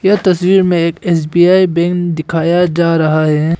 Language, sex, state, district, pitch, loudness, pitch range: Hindi, male, Arunachal Pradesh, Longding, 170 Hz, -12 LUFS, 165-180 Hz